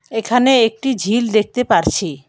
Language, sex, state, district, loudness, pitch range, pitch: Bengali, female, West Bengal, Alipurduar, -15 LUFS, 205-245 Hz, 225 Hz